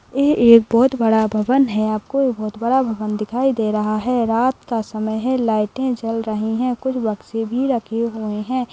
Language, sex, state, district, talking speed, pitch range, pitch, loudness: Hindi, female, Rajasthan, Nagaur, 200 wpm, 215-255 Hz, 230 Hz, -19 LUFS